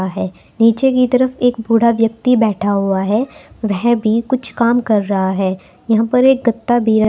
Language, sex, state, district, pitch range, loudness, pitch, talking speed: Hindi, female, Uttar Pradesh, Saharanpur, 205-245 Hz, -15 LUFS, 225 Hz, 195 wpm